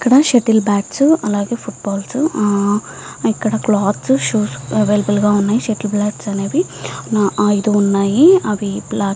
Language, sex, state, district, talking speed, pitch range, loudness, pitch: Telugu, female, Andhra Pradesh, Visakhapatnam, 140 wpm, 205-230 Hz, -16 LUFS, 210 Hz